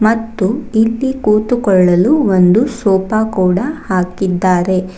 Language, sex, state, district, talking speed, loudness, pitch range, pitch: Kannada, female, Karnataka, Bangalore, 85 wpm, -13 LUFS, 185-230 Hz, 210 Hz